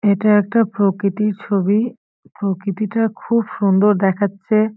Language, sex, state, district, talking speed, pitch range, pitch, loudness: Bengali, female, West Bengal, Paschim Medinipur, 100 wpm, 200-215 Hz, 205 Hz, -18 LUFS